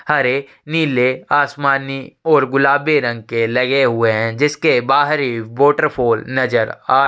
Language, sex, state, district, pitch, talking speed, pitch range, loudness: Hindi, male, Chhattisgarh, Sukma, 135 Hz, 120 wpm, 120-145 Hz, -16 LUFS